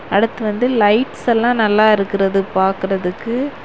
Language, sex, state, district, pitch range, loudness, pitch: Tamil, female, Tamil Nadu, Kanyakumari, 195-235 Hz, -16 LUFS, 215 Hz